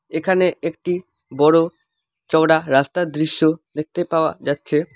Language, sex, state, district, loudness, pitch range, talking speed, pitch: Bengali, male, West Bengal, Alipurduar, -19 LUFS, 150-165 Hz, 110 wpm, 160 Hz